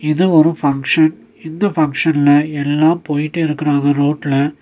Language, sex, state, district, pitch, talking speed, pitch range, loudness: Tamil, male, Tamil Nadu, Nilgiris, 150 Hz, 115 wpm, 145-160 Hz, -15 LUFS